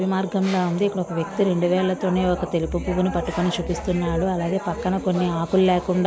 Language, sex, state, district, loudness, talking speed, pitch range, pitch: Telugu, female, Andhra Pradesh, Visakhapatnam, -22 LUFS, 180 wpm, 175-185 Hz, 180 Hz